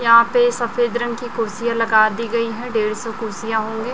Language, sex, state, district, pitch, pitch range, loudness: Hindi, male, Chhattisgarh, Raipur, 230 Hz, 225-240 Hz, -19 LUFS